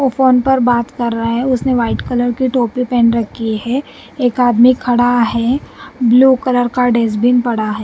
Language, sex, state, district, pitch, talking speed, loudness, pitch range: Hindi, female, Punjab, Pathankot, 245 Hz, 190 wpm, -14 LUFS, 235-255 Hz